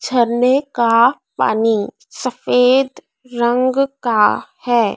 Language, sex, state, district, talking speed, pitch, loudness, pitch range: Hindi, female, Madhya Pradesh, Dhar, 85 wpm, 245 Hz, -16 LUFS, 235-260 Hz